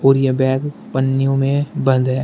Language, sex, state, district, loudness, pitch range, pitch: Hindi, male, Uttar Pradesh, Shamli, -17 LUFS, 130-135 Hz, 135 Hz